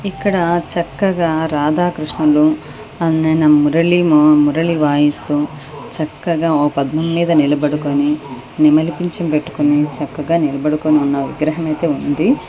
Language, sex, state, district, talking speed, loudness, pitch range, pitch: Telugu, female, Andhra Pradesh, Anantapur, 95 wpm, -15 LUFS, 150-165 Hz, 155 Hz